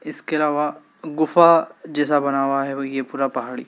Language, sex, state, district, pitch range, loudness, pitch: Hindi, male, Madhya Pradesh, Dhar, 135-155 Hz, -20 LUFS, 145 Hz